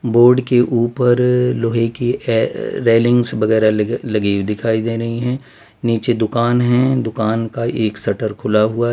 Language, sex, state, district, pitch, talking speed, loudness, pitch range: Hindi, male, Gujarat, Valsad, 115 Hz, 150 wpm, -16 LUFS, 110-120 Hz